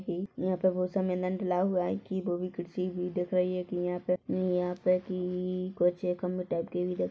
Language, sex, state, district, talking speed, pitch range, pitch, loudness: Hindi, female, Chhattisgarh, Rajnandgaon, 245 wpm, 180-185 Hz, 180 Hz, -31 LUFS